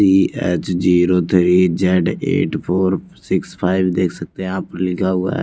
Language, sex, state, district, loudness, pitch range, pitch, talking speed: Hindi, male, Chandigarh, Chandigarh, -17 LUFS, 90-95 Hz, 90 Hz, 155 wpm